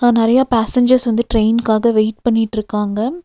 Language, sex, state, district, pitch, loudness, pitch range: Tamil, female, Tamil Nadu, Nilgiris, 230 Hz, -15 LUFS, 220-240 Hz